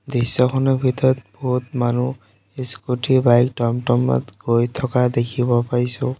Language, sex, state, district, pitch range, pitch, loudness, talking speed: Assamese, male, Assam, Sonitpur, 120-130 Hz, 125 Hz, -19 LUFS, 105 wpm